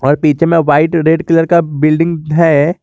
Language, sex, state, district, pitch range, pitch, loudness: Hindi, male, Jharkhand, Garhwa, 150-165 Hz, 160 Hz, -11 LUFS